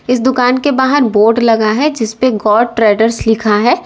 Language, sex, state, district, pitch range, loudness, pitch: Hindi, female, Uttar Pradesh, Lalitpur, 220-260 Hz, -11 LUFS, 235 Hz